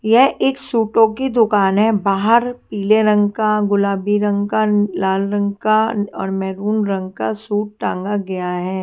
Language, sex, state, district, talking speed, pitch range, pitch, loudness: Hindi, female, Haryana, Jhajjar, 165 wpm, 195-220 Hz, 205 Hz, -17 LUFS